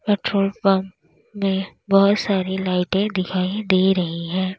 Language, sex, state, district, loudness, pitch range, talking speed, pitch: Hindi, female, Uttar Pradesh, Lalitpur, -20 LUFS, 185-200 Hz, 130 wpm, 190 Hz